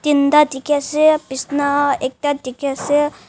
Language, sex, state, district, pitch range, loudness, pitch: Nagamese, female, Nagaland, Dimapur, 275-295 Hz, -17 LUFS, 285 Hz